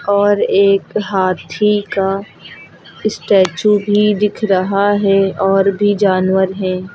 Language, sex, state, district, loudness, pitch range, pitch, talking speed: Hindi, female, Uttar Pradesh, Lucknow, -14 LUFS, 190-205 Hz, 195 Hz, 110 wpm